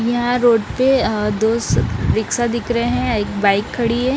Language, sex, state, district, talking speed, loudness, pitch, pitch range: Hindi, female, Bihar, Patna, 200 wpm, -17 LUFS, 235 Hz, 215-240 Hz